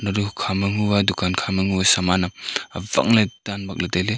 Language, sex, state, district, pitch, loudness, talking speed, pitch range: Wancho, male, Arunachal Pradesh, Longding, 100 Hz, -21 LUFS, 215 wpm, 95-100 Hz